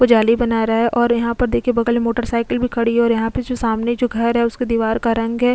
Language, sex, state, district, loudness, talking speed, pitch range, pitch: Hindi, female, Goa, North and South Goa, -18 LUFS, 290 wpm, 230-240 Hz, 235 Hz